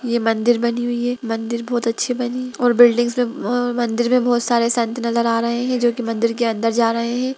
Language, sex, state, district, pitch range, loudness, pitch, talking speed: Hindi, female, Bihar, Gaya, 235-245 Hz, -19 LUFS, 235 Hz, 250 wpm